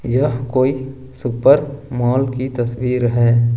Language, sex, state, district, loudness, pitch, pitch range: Hindi, male, Jharkhand, Ranchi, -17 LUFS, 125 Hz, 120-130 Hz